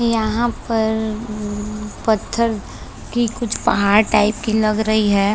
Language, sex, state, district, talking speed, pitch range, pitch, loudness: Hindi, female, Maharashtra, Chandrapur, 125 wpm, 210-230 Hz, 220 Hz, -19 LUFS